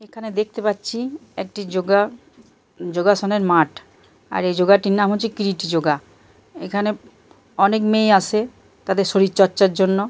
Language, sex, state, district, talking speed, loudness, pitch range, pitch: Bengali, male, Jharkhand, Jamtara, 130 wpm, -19 LUFS, 185-215 Hz, 200 Hz